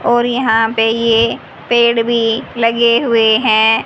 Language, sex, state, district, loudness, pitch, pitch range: Hindi, female, Haryana, Jhajjar, -13 LUFS, 230 Hz, 225-235 Hz